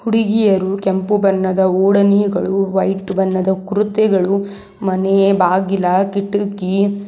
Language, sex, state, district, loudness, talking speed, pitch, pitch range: Kannada, female, Karnataka, Belgaum, -16 LUFS, 85 wpm, 195 Hz, 190-200 Hz